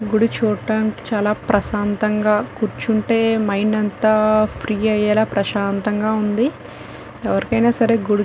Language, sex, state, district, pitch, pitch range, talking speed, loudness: Telugu, female, Telangana, Nalgonda, 215 Hz, 210-220 Hz, 100 wpm, -18 LUFS